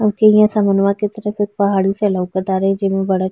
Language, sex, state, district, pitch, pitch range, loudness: Bhojpuri, female, Bihar, East Champaran, 200 Hz, 195-210 Hz, -16 LUFS